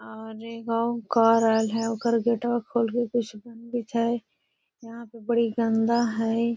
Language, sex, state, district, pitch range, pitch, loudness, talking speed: Magahi, female, Bihar, Gaya, 225-235 Hz, 230 Hz, -25 LUFS, 175 wpm